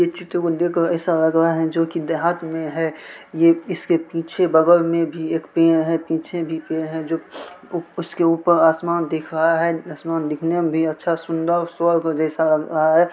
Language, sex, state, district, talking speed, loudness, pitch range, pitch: Maithili, male, Bihar, Supaul, 205 wpm, -20 LUFS, 160-170 Hz, 165 Hz